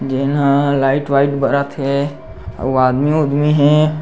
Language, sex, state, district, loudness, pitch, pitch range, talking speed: Chhattisgarhi, male, Chhattisgarh, Sukma, -15 LUFS, 140 Hz, 135-145 Hz, 150 wpm